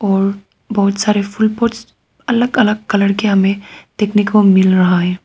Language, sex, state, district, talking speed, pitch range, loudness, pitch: Hindi, female, Arunachal Pradesh, Papum Pare, 170 wpm, 195-215 Hz, -14 LUFS, 205 Hz